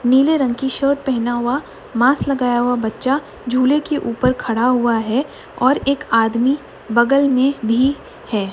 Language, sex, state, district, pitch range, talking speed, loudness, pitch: Hindi, female, Uttar Pradesh, Budaun, 235-275 Hz, 160 wpm, -17 LUFS, 255 Hz